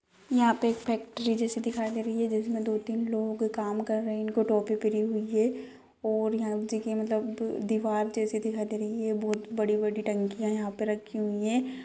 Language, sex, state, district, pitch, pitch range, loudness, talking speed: Kumaoni, female, Uttarakhand, Uttarkashi, 220 Hz, 215-225 Hz, -30 LUFS, 210 wpm